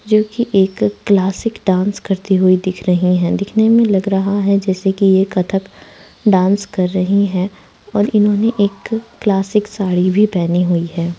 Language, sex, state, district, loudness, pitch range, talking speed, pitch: Hindi, female, Bihar, Araria, -15 LUFS, 185-205 Hz, 170 wpm, 195 Hz